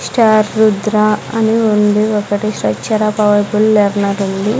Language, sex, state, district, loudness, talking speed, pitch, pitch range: Telugu, female, Andhra Pradesh, Sri Satya Sai, -13 LUFS, 130 wpm, 215 Hz, 205-215 Hz